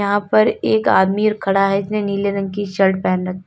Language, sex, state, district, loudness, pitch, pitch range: Hindi, female, Uttar Pradesh, Lalitpur, -17 LUFS, 195 Hz, 190-205 Hz